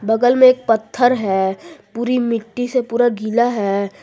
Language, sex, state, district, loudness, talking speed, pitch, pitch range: Hindi, female, Jharkhand, Garhwa, -17 LUFS, 165 wpm, 235 Hz, 215-245 Hz